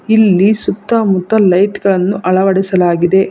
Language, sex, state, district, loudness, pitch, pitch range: Kannada, female, Karnataka, Bangalore, -12 LUFS, 195 Hz, 185-210 Hz